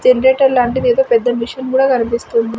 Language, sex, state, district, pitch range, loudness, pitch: Telugu, female, Andhra Pradesh, Sri Satya Sai, 240-265 Hz, -14 LUFS, 255 Hz